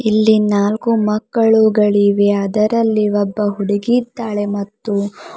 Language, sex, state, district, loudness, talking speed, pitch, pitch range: Kannada, female, Karnataka, Bidar, -15 LUFS, 90 wpm, 210 Hz, 205-220 Hz